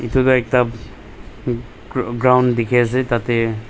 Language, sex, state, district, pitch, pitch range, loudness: Nagamese, male, Nagaland, Dimapur, 120 Hz, 115-125 Hz, -18 LUFS